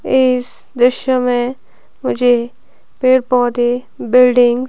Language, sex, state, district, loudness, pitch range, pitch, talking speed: Hindi, female, Himachal Pradesh, Shimla, -14 LUFS, 245-255 Hz, 250 Hz, 100 wpm